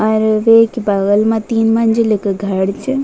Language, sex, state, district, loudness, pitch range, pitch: Garhwali, female, Uttarakhand, Tehri Garhwal, -13 LUFS, 205-225 Hz, 220 Hz